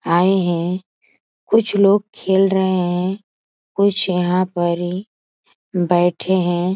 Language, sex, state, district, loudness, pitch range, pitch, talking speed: Hindi, female, Bihar, East Champaran, -18 LUFS, 175-195 Hz, 185 Hz, 115 wpm